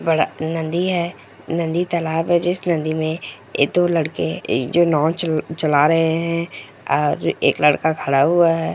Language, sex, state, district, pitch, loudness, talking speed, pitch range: Hindi, female, Bihar, Jamui, 165 Hz, -19 LUFS, 150 wpm, 155-170 Hz